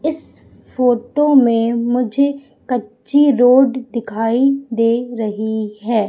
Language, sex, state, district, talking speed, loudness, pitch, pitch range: Hindi, female, Madhya Pradesh, Umaria, 100 wpm, -16 LUFS, 245 Hz, 230-270 Hz